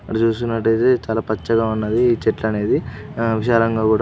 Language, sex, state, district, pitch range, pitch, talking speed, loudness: Telugu, male, Andhra Pradesh, Guntur, 110-115 Hz, 115 Hz, 180 wpm, -19 LUFS